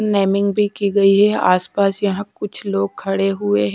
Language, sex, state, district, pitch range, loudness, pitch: Hindi, female, Punjab, Kapurthala, 195-205 Hz, -17 LUFS, 200 Hz